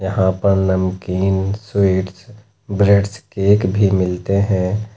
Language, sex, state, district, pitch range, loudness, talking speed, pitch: Hindi, male, Uttar Pradesh, Lucknow, 95-100 Hz, -17 LUFS, 110 wpm, 95 Hz